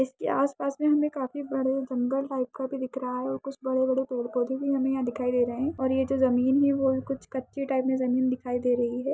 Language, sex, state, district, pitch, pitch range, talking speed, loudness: Hindi, female, Uttarakhand, Tehri Garhwal, 265 Hz, 255-275 Hz, 255 wpm, -27 LUFS